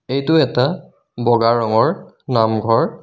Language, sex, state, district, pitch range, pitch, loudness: Assamese, male, Assam, Kamrup Metropolitan, 115-135 Hz, 120 Hz, -17 LUFS